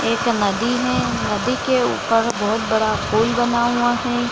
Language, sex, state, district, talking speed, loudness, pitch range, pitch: Hindi, female, Bihar, Gaya, 180 wpm, -19 LUFS, 220-240 Hz, 235 Hz